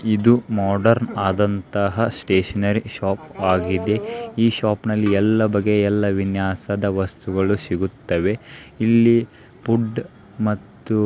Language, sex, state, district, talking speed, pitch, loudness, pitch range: Kannada, male, Karnataka, Belgaum, 100 wpm, 105 Hz, -20 LUFS, 100-115 Hz